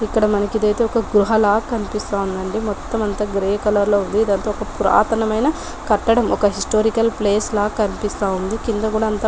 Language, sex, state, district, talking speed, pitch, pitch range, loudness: Telugu, female, Telangana, Nalgonda, 180 wpm, 215 Hz, 205-220 Hz, -19 LUFS